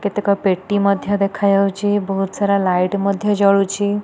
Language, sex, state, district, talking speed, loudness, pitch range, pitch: Odia, female, Odisha, Nuapada, 135 wpm, -17 LUFS, 195-205 Hz, 200 Hz